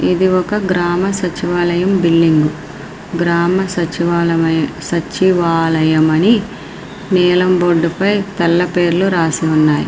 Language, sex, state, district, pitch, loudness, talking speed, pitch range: Telugu, female, Andhra Pradesh, Srikakulam, 175 Hz, -14 LUFS, 105 wpm, 165-185 Hz